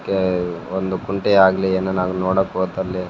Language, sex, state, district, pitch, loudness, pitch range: Kannada, male, Karnataka, Raichur, 95 Hz, -19 LUFS, 90-95 Hz